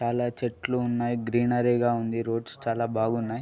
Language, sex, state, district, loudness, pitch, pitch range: Telugu, male, Andhra Pradesh, Srikakulam, -27 LUFS, 120 Hz, 115-120 Hz